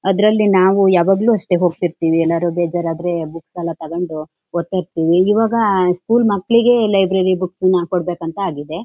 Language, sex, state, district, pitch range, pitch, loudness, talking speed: Kannada, female, Karnataka, Shimoga, 170-195 Hz, 180 Hz, -16 LUFS, 140 wpm